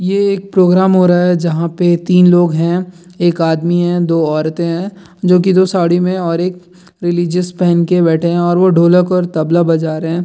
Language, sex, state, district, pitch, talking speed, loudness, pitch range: Hindi, male, Bihar, Jamui, 175 Hz, 220 wpm, -13 LUFS, 170-180 Hz